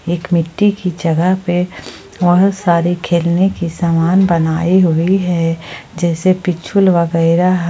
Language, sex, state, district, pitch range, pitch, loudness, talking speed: Hindi, female, Jharkhand, Ranchi, 170-185 Hz, 175 Hz, -14 LUFS, 110 wpm